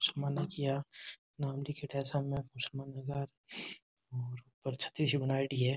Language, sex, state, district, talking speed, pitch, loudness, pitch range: Marwari, male, Rajasthan, Nagaur, 145 wpm, 135 Hz, -37 LUFS, 135-140 Hz